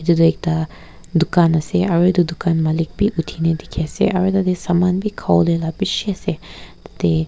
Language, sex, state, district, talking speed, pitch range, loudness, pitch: Nagamese, female, Nagaland, Kohima, 180 wpm, 160-185 Hz, -18 LUFS, 170 Hz